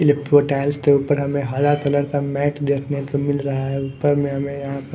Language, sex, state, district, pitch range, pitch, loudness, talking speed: Hindi, female, Himachal Pradesh, Shimla, 140-145 Hz, 140 Hz, -20 LUFS, 230 wpm